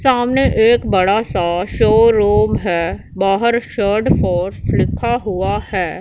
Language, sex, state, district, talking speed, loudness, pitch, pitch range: Hindi, female, Punjab, Pathankot, 120 wpm, -15 LUFS, 210 Hz, 185-235 Hz